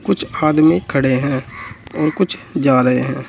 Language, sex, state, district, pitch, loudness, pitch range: Hindi, male, Uttar Pradesh, Saharanpur, 135 Hz, -16 LUFS, 125-155 Hz